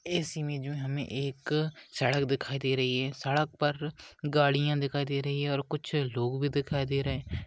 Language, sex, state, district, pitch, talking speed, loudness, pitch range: Hindi, male, Maharashtra, Dhule, 140 Hz, 195 wpm, -31 LUFS, 135-150 Hz